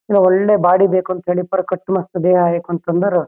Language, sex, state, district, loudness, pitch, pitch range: Kannada, male, Karnataka, Shimoga, -16 LUFS, 185 Hz, 175-190 Hz